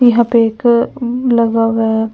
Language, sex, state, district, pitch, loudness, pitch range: Hindi, female, Delhi, New Delhi, 235 Hz, -13 LUFS, 225-240 Hz